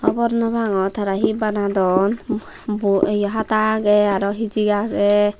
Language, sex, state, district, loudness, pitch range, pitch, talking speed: Chakma, female, Tripura, Dhalai, -19 LUFS, 200-220 Hz, 210 Hz, 145 wpm